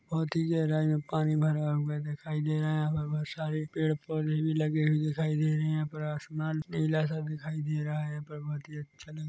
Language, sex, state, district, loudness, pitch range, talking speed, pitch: Hindi, male, Chhattisgarh, Korba, -31 LUFS, 150-155 Hz, 220 wpm, 155 Hz